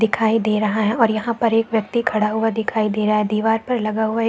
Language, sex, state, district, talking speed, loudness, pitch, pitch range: Hindi, female, Chhattisgarh, Balrampur, 295 wpm, -19 LUFS, 220 Hz, 215-225 Hz